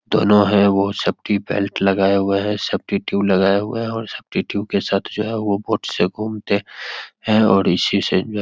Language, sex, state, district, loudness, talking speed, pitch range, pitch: Hindi, male, Bihar, Begusarai, -19 LUFS, 220 wpm, 100-105 Hz, 100 Hz